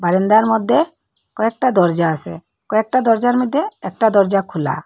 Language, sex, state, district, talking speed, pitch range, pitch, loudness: Bengali, female, Assam, Hailakandi, 135 wpm, 175-245 Hz, 215 Hz, -16 LUFS